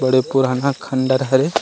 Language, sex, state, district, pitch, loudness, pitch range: Chhattisgarhi, male, Chhattisgarh, Rajnandgaon, 130 Hz, -18 LUFS, 130-135 Hz